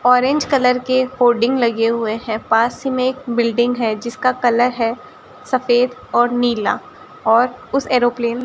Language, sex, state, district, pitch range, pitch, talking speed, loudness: Hindi, female, Rajasthan, Barmer, 235-255 Hz, 245 Hz, 165 wpm, -17 LUFS